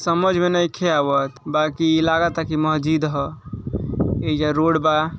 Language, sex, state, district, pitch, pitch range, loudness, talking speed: Bhojpuri, male, Uttar Pradesh, Ghazipur, 155 Hz, 150-165 Hz, -20 LUFS, 150 wpm